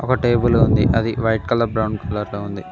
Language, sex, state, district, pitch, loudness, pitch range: Telugu, male, Telangana, Mahabubabad, 110 Hz, -19 LUFS, 105-115 Hz